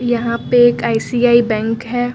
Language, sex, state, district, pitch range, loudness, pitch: Hindi, female, Uttar Pradesh, Lucknow, 230-245 Hz, -15 LUFS, 240 Hz